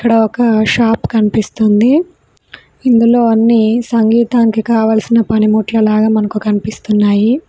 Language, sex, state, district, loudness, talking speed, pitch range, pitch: Telugu, female, Telangana, Mahabubabad, -12 LUFS, 90 wpm, 215-235 Hz, 225 Hz